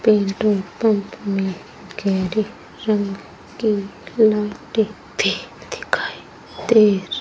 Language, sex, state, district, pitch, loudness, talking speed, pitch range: Hindi, female, Rajasthan, Bikaner, 210 Hz, -20 LUFS, 100 wpm, 195-220 Hz